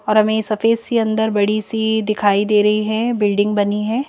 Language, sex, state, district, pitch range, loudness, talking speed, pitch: Hindi, female, Madhya Pradesh, Bhopal, 210-220 Hz, -17 LUFS, 205 wpm, 215 Hz